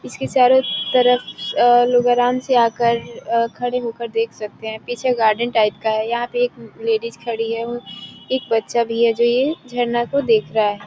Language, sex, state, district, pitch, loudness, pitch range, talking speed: Hindi, female, Bihar, Gopalganj, 235 Hz, -19 LUFS, 225-245 Hz, 195 wpm